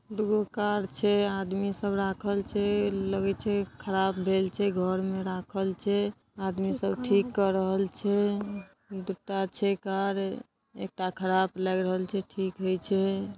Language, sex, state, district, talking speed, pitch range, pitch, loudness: Maithili, female, Bihar, Darbhanga, 155 wpm, 190-205 Hz, 195 Hz, -29 LUFS